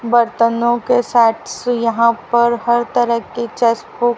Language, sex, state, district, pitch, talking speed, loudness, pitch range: Hindi, female, Haryana, Rohtak, 235 Hz, 130 wpm, -16 LUFS, 230-240 Hz